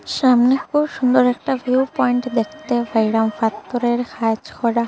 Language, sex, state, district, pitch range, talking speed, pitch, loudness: Bengali, female, Assam, Hailakandi, 230-260 Hz, 125 wpm, 245 Hz, -19 LUFS